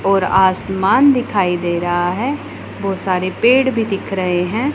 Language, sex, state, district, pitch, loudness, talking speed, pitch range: Hindi, female, Punjab, Pathankot, 195 Hz, -16 LUFS, 165 wpm, 180-245 Hz